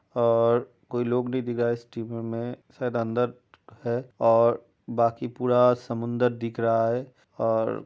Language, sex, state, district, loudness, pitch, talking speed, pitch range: Hindi, male, Uttar Pradesh, Jyotiba Phule Nagar, -26 LUFS, 120 Hz, 155 wpm, 115-125 Hz